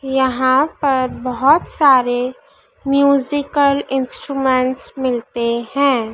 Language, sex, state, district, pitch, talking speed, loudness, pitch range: Hindi, female, Madhya Pradesh, Dhar, 265 Hz, 80 wpm, -16 LUFS, 255-280 Hz